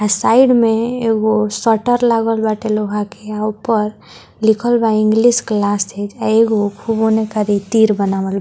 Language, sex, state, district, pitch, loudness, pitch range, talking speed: Bhojpuri, female, Bihar, Muzaffarpur, 220 Hz, -15 LUFS, 210-225 Hz, 165 wpm